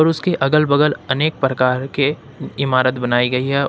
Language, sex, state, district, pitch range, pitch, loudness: Hindi, male, Jharkhand, Ranchi, 130-150 Hz, 140 Hz, -17 LUFS